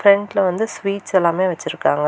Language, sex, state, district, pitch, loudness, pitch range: Tamil, female, Tamil Nadu, Kanyakumari, 195 Hz, -19 LUFS, 180-200 Hz